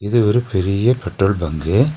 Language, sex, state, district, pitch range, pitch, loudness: Tamil, male, Tamil Nadu, Nilgiris, 95-120 Hz, 105 Hz, -18 LUFS